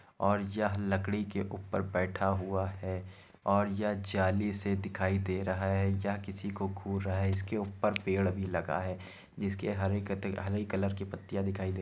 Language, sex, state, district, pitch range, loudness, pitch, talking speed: Hindi, male, Uttar Pradesh, Hamirpur, 95-100 Hz, -34 LUFS, 95 Hz, 195 wpm